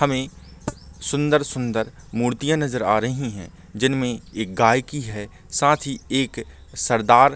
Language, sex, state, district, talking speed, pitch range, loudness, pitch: Hindi, male, Chhattisgarh, Balrampur, 140 wpm, 110-140 Hz, -22 LUFS, 125 Hz